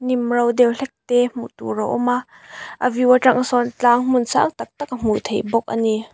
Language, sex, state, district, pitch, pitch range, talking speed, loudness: Mizo, female, Mizoram, Aizawl, 245 Hz, 230-250 Hz, 235 wpm, -19 LUFS